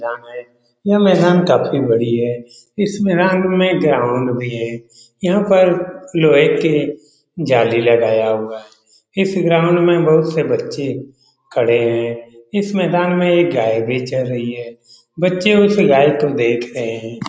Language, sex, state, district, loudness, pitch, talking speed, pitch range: Hindi, male, Bihar, Saran, -15 LUFS, 135 Hz, 150 wpm, 115-180 Hz